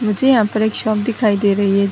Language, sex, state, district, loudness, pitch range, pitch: Hindi, female, Uttar Pradesh, Deoria, -16 LUFS, 205-220 Hz, 215 Hz